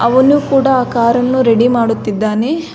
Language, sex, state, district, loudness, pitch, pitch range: Kannada, female, Karnataka, Belgaum, -12 LUFS, 245 Hz, 230-265 Hz